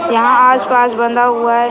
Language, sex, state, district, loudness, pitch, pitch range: Hindi, female, Maharashtra, Dhule, -11 LUFS, 240 Hz, 235-250 Hz